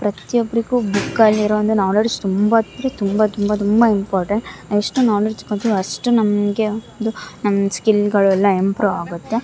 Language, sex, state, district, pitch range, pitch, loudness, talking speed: Kannada, female, Karnataka, Shimoga, 200-225 Hz, 210 Hz, -18 LUFS, 120 wpm